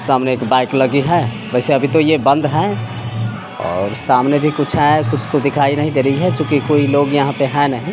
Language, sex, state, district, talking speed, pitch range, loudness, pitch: Hindi, male, Bihar, Samastipur, 225 wpm, 130-145 Hz, -15 LUFS, 140 Hz